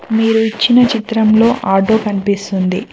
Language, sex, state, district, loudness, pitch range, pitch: Telugu, female, Telangana, Mahabubabad, -13 LUFS, 200-225 Hz, 220 Hz